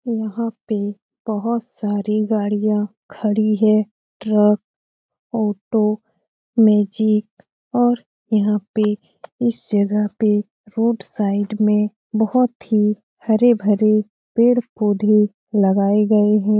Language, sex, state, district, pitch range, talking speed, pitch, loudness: Hindi, female, Bihar, Lakhisarai, 210-220 Hz, 95 wpm, 215 Hz, -19 LUFS